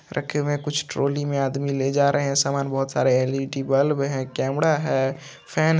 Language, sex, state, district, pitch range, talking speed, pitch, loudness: Hindi, male, Andhra Pradesh, Chittoor, 135-145 Hz, 205 wpm, 140 Hz, -23 LUFS